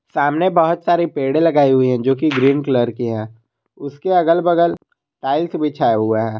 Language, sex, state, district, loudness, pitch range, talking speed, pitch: Hindi, male, Jharkhand, Garhwa, -16 LUFS, 120-165 Hz, 190 wpm, 140 Hz